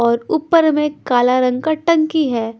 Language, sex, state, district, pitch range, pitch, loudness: Hindi, female, Bihar, Patna, 245-315 Hz, 295 Hz, -16 LUFS